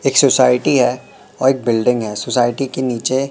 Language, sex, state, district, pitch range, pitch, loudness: Hindi, male, Madhya Pradesh, Katni, 120-135 Hz, 130 Hz, -16 LUFS